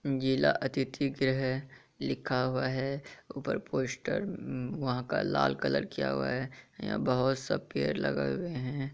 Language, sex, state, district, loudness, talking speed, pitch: Hindi, male, Bihar, Kishanganj, -32 LUFS, 145 wpm, 130 Hz